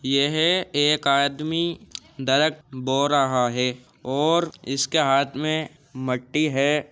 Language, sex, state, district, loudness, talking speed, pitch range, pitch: Hindi, male, Uttar Pradesh, Jyotiba Phule Nagar, -22 LUFS, 115 wpm, 135-155 Hz, 140 Hz